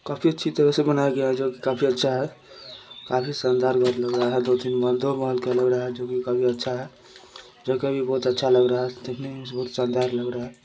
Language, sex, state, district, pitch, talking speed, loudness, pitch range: Hindi, male, Bihar, Jamui, 125 Hz, 275 wpm, -24 LUFS, 125-130 Hz